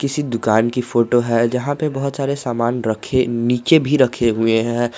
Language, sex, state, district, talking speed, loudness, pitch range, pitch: Hindi, male, Jharkhand, Garhwa, 190 wpm, -18 LUFS, 115-140 Hz, 120 Hz